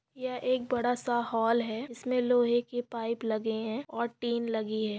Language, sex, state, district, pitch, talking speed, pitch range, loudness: Hindi, female, Maharashtra, Dhule, 235 Hz, 180 wpm, 225-245 Hz, -31 LUFS